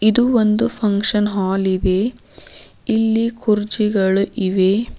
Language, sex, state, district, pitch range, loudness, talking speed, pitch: Kannada, female, Karnataka, Bidar, 195-225 Hz, -17 LUFS, 95 wpm, 210 Hz